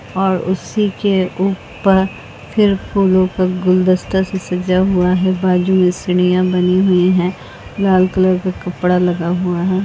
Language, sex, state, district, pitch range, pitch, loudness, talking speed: Hindi, female, Goa, North and South Goa, 180-190 Hz, 185 Hz, -15 LUFS, 150 wpm